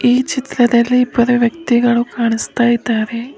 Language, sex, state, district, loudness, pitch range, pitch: Kannada, female, Karnataka, Bidar, -15 LUFS, 235-245 Hz, 240 Hz